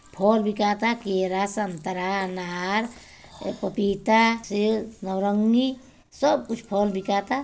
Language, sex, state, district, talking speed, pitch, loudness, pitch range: Bhojpuri, female, Bihar, Gopalganj, 105 wpm, 205 Hz, -24 LUFS, 195-225 Hz